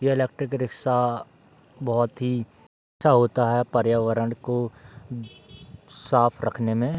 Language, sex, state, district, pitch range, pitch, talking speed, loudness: Hindi, male, Bihar, Darbhanga, 115-130 Hz, 120 Hz, 110 wpm, -24 LUFS